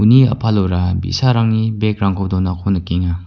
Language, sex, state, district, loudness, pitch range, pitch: Garo, male, Meghalaya, West Garo Hills, -16 LUFS, 90-110 Hz, 100 Hz